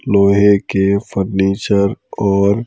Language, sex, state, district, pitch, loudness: Hindi, male, Madhya Pradesh, Bhopal, 100 Hz, -15 LUFS